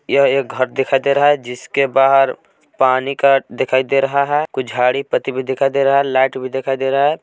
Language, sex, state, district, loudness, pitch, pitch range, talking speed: Hindi, male, Jharkhand, Palamu, -16 LUFS, 135 Hz, 130-140 Hz, 240 wpm